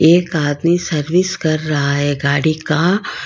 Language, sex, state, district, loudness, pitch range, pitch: Hindi, female, Karnataka, Bangalore, -16 LUFS, 145-175 Hz, 155 Hz